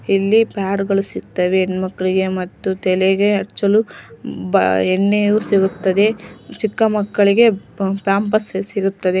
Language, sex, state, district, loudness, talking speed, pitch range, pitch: Kannada, female, Karnataka, Dharwad, -17 LUFS, 90 wpm, 190-205 Hz, 195 Hz